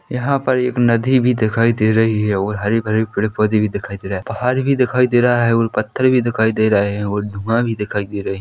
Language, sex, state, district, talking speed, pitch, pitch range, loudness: Hindi, male, Chhattisgarh, Korba, 255 wpm, 110 Hz, 105-125 Hz, -17 LUFS